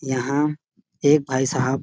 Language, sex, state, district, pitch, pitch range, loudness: Hindi, male, Chhattisgarh, Sarguja, 135 Hz, 130-150 Hz, -21 LUFS